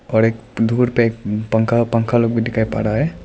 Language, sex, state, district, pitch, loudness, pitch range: Hindi, male, Arunachal Pradesh, Lower Dibang Valley, 115 Hz, -18 LUFS, 110-120 Hz